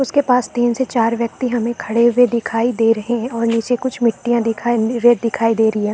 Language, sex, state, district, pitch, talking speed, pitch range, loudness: Hindi, female, Chhattisgarh, Bastar, 235 Hz, 230 wpm, 230-240 Hz, -17 LUFS